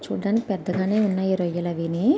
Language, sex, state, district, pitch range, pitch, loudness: Telugu, female, Andhra Pradesh, Anantapur, 175-210 Hz, 190 Hz, -24 LUFS